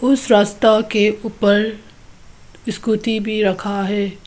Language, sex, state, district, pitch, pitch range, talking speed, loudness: Hindi, female, Arunachal Pradesh, Lower Dibang Valley, 215 Hz, 205-220 Hz, 110 wpm, -17 LUFS